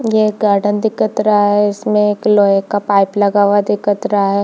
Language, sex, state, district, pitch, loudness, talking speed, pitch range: Hindi, female, Chhattisgarh, Bilaspur, 205 Hz, -14 LUFS, 215 wpm, 200-210 Hz